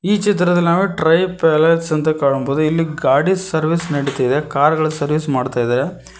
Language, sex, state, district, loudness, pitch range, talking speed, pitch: Kannada, male, Karnataka, Koppal, -16 LUFS, 140-170 Hz, 145 wpm, 155 Hz